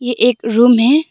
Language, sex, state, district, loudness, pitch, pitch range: Hindi, female, Arunachal Pradesh, Longding, -12 LUFS, 245 Hz, 235-250 Hz